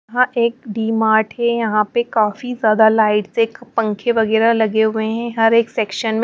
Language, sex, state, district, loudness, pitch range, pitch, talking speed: Hindi, female, Punjab, Pathankot, -17 LUFS, 220-235 Hz, 225 Hz, 190 wpm